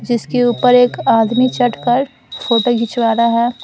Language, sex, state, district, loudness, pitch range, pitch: Hindi, female, Bihar, Patna, -14 LUFS, 230-245 Hz, 240 Hz